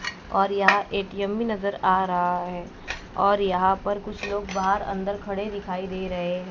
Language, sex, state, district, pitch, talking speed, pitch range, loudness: Hindi, female, Maharashtra, Gondia, 195 Hz, 175 wpm, 185-200 Hz, -25 LUFS